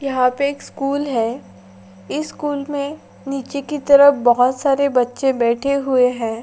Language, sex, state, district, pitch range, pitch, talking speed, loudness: Maithili, female, Bihar, Lakhisarai, 245-280 Hz, 275 Hz, 150 wpm, -18 LUFS